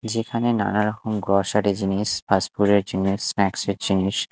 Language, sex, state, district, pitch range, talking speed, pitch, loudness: Bengali, male, Odisha, Malkangiri, 95-105 Hz, 140 wpm, 100 Hz, -22 LUFS